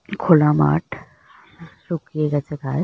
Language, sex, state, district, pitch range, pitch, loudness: Bengali, female, West Bengal, Jalpaiguri, 130-160 Hz, 150 Hz, -19 LUFS